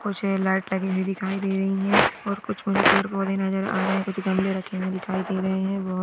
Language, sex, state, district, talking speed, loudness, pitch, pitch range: Marwari, female, Rajasthan, Churu, 220 wpm, -24 LUFS, 195 Hz, 190-195 Hz